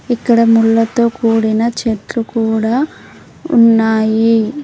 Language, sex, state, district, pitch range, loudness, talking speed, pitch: Telugu, female, Telangana, Mahabubabad, 225-235 Hz, -13 LUFS, 80 wpm, 225 Hz